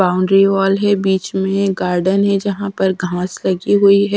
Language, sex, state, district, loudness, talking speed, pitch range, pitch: Hindi, female, Haryana, Rohtak, -15 LUFS, 185 wpm, 185-200 Hz, 195 Hz